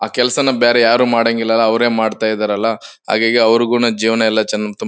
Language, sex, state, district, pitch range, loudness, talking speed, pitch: Kannada, male, Karnataka, Bellary, 110-120 Hz, -14 LUFS, 185 wpm, 115 Hz